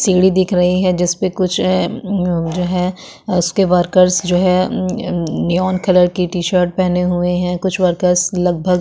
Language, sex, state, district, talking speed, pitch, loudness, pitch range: Hindi, female, Uttarakhand, Tehri Garhwal, 185 wpm, 180 Hz, -15 LUFS, 180-185 Hz